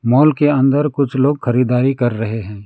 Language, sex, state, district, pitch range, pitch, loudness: Hindi, male, West Bengal, Alipurduar, 120-140 Hz, 130 Hz, -15 LUFS